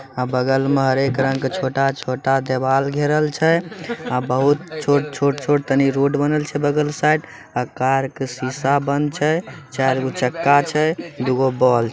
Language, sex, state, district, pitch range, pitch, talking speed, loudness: Maithili, male, Bihar, Samastipur, 130-150 Hz, 140 Hz, 165 wpm, -19 LUFS